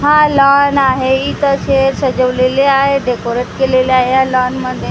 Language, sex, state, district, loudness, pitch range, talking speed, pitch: Marathi, female, Maharashtra, Gondia, -12 LUFS, 255-275 Hz, 160 wpm, 265 Hz